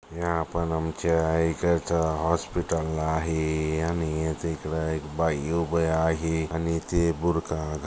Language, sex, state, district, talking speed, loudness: Marathi, female, Maharashtra, Aurangabad, 120 wpm, -27 LUFS